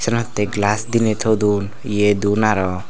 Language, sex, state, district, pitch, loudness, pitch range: Chakma, male, Tripura, Unakoti, 105 Hz, -18 LUFS, 100-110 Hz